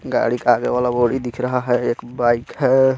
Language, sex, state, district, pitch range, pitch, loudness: Hindi, male, Jharkhand, Garhwa, 120-130 Hz, 125 Hz, -19 LUFS